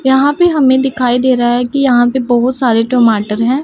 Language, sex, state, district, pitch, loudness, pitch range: Hindi, female, Punjab, Pathankot, 255 Hz, -11 LUFS, 240-265 Hz